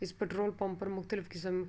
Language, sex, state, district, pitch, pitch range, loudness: Urdu, female, Andhra Pradesh, Anantapur, 195 Hz, 185-205 Hz, -37 LUFS